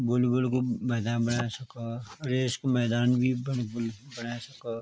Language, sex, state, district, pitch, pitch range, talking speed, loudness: Garhwali, male, Uttarakhand, Tehri Garhwal, 120 Hz, 120-125 Hz, 185 wpm, -29 LUFS